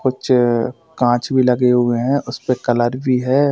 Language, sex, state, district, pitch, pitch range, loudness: Hindi, male, Madhya Pradesh, Bhopal, 125 Hz, 120-130 Hz, -17 LUFS